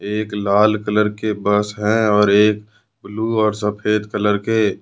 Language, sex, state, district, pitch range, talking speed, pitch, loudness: Hindi, male, Jharkhand, Ranchi, 105-110 Hz, 160 wpm, 105 Hz, -17 LUFS